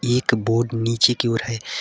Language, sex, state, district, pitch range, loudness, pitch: Hindi, male, Jharkhand, Garhwa, 115-120 Hz, -20 LUFS, 115 Hz